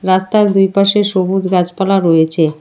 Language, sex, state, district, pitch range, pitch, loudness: Bengali, female, West Bengal, Alipurduar, 175-195 Hz, 190 Hz, -13 LUFS